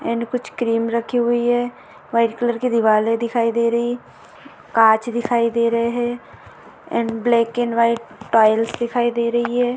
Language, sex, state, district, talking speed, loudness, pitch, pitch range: Hindi, female, Maharashtra, Sindhudurg, 170 wpm, -19 LUFS, 235 Hz, 230-240 Hz